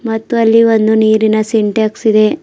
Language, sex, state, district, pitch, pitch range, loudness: Kannada, female, Karnataka, Bidar, 220 Hz, 215-225 Hz, -11 LUFS